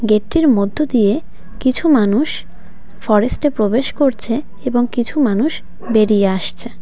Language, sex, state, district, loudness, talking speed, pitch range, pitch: Bengali, female, West Bengal, Cooch Behar, -16 LUFS, 115 wpm, 205-275 Hz, 230 Hz